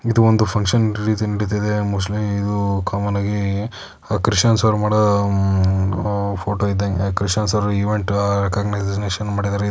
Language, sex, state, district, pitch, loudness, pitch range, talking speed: Kannada, male, Karnataka, Dakshina Kannada, 100 Hz, -19 LUFS, 100-105 Hz, 135 wpm